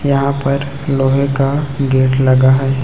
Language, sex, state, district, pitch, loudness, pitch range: Hindi, male, Chhattisgarh, Raipur, 135 Hz, -14 LUFS, 135-140 Hz